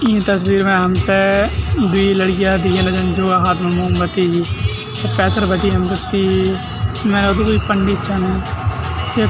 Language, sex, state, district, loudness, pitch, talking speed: Garhwali, male, Uttarakhand, Tehri Garhwal, -16 LUFS, 180 Hz, 135 wpm